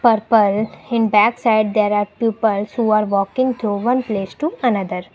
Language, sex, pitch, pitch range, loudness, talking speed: English, female, 215 Hz, 205-235 Hz, -18 LUFS, 175 wpm